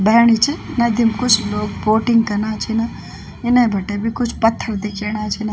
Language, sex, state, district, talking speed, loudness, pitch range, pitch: Garhwali, female, Uttarakhand, Tehri Garhwal, 175 wpm, -17 LUFS, 210-235 Hz, 225 Hz